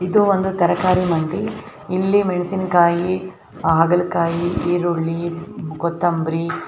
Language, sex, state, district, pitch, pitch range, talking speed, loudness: Kannada, female, Karnataka, Belgaum, 175 Hz, 170-185 Hz, 80 wpm, -19 LUFS